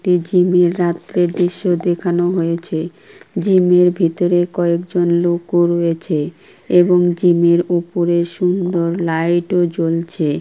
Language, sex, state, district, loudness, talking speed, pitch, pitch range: Bengali, female, West Bengal, Kolkata, -16 LUFS, 120 wpm, 175 Hz, 170-180 Hz